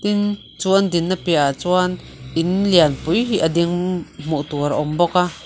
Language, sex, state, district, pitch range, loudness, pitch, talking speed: Mizo, female, Mizoram, Aizawl, 155-185 Hz, -19 LUFS, 175 Hz, 195 wpm